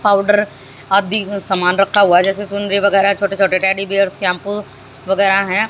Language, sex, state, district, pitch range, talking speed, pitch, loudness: Hindi, female, Haryana, Jhajjar, 190-200 Hz, 180 wpm, 195 Hz, -14 LUFS